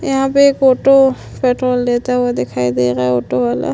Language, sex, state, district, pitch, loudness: Hindi, female, Chhattisgarh, Sukma, 245 Hz, -14 LUFS